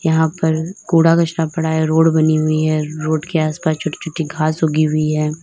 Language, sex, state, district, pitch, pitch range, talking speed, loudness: Hindi, female, Uttar Pradesh, Lalitpur, 160 Hz, 155-160 Hz, 200 wpm, -17 LUFS